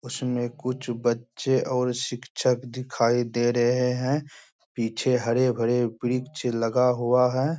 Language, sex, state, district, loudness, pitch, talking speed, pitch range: Hindi, male, Bihar, Bhagalpur, -25 LUFS, 125 Hz, 120 wpm, 120-125 Hz